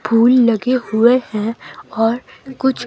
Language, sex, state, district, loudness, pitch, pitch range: Hindi, female, Himachal Pradesh, Shimla, -15 LUFS, 240 Hz, 225-255 Hz